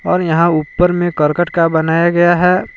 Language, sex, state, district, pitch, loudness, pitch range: Hindi, male, Jharkhand, Palamu, 170 Hz, -13 LUFS, 160-175 Hz